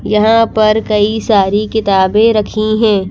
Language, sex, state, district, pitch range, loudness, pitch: Hindi, female, Madhya Pradesh, Bhopal, 205-220 Hz, -12 LUFS, 215 Hz